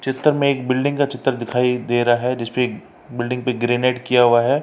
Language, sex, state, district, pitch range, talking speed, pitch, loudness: Hindi, male, Uttar Pradesh, Varanasi, 120-135 Hz, 235 wpm, 125 Hz, -19 LUFS